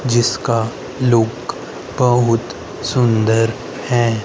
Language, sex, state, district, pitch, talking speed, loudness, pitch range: Hindi, male, Haryana, Rohtak, 120 Hz, 70 wpm, -17 LUFS, 115-125 Hz